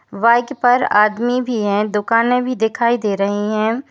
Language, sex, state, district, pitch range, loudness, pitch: Hindi, female, Uttar Pradesh, Lalitpur, 210-245 Hz, -16 LUFS, 230 Hz